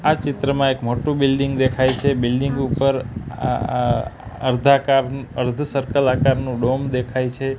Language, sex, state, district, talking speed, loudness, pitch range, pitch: Gujarati, male, Gujarat, Gandhinagar, 120 wpm, -20 LUFS, 125-135 Hz, 130 Hz